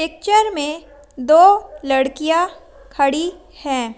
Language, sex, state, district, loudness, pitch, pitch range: Hindi, female, Madhya Pradesh, Umaria, -16 LUFS, 305 Hz, 275-335 Hz